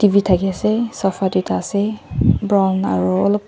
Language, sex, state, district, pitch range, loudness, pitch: Nagamese, female, Nagaland, Dimapur, 190-205 Hz, -18 LUFS, 195 Hz